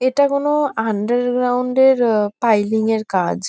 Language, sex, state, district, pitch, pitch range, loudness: Bengali, female, West Bengal, Kolkata, 240 Hz, 220-260 Hz, -17 LUFS